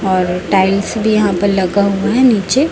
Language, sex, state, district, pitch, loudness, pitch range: Hindi, female, Chhattisgarh, Raipur, 200 Hz, -13 LUFS, 190-215 Hz